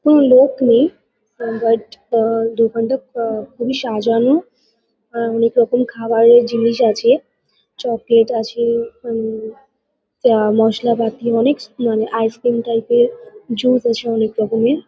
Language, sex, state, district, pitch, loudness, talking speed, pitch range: Bengali, female, West Bengal, Kolkata, 230 Hz, -16 LUFS, 115 wpm, 225-245 Hz